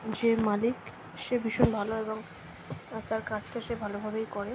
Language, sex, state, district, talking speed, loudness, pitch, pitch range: Bengali, female, West Bengal, Jhargram, 145 wpm, -31 LUFS, 220 Hz, 215-230 Hz